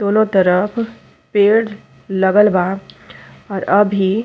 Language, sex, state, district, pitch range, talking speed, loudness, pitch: Bhojpuri, female, Uttar Pradesh, Ghazipur, 190-210 Hz, 115 wpm, -15 LUFS, 200 Hz